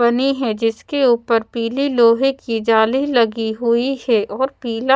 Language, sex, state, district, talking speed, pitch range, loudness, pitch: Hindi, female, Bihar, Patna, 155 wpm, 225-265 Hz, -17 LUFS, 235 Hz